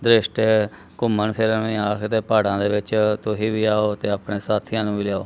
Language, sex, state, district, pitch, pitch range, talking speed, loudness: Punjabi, male, Punjab, Kapurthala, 105 Hz, 105-110 Hz, 205 wpm, -21 LUFS